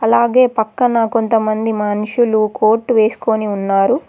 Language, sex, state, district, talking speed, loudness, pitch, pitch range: Telugu, female, Telangana, Mahabubabad, 100 wpm, -15 LUFS, 220 Hz, 215-230 Hz